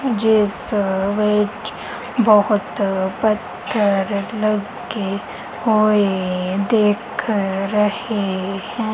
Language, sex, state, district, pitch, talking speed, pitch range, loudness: Punjabi, female, Punjab, Kapurthala, 210 Hz, 60 wpm, 195-215 Hz, -19 LUFS